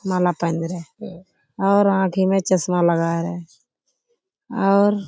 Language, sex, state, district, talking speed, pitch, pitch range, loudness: Hindi, female, Uttar Pradesh, Budaun, 130 wpm, 190 Hz, 175-200 Hz, -20 LUFS